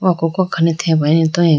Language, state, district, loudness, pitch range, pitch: Idu Mishmi, Arunachal Pradesh, Lower Dibang Valley, -15 LUFS, 160-175 Hz, 165 Hz